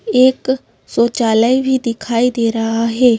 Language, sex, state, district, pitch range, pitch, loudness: Hindi, female, Madhya Pradesh, Bhopal, 230-255 Hz, 235 Hz, -15 LUFS